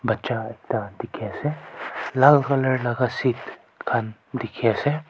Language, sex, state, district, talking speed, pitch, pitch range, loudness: Nagamese, male, Nagaland, Kohima, 120 wpm, 130 Hz, 120-145 Hz, -23 LUFS